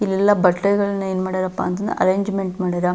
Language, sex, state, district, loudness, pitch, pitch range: Kannada, female, Karnataka, Belgaum, -20 LUFS, 190 Hz, 185-200 Hz